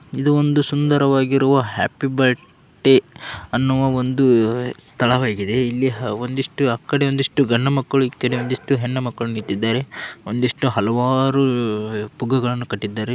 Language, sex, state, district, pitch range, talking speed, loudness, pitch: Kannada, male, Karnataka, Dharwad, 120-135 Hz, 115 wpm, -19 LUFS, 130 Hz